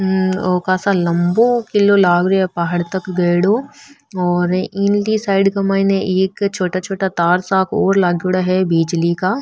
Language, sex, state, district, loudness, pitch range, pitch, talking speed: Marwari, female, Rajasthan, Nagaur, -16 LUFS, 180-200 Hz, 190 Hz, 160 wpm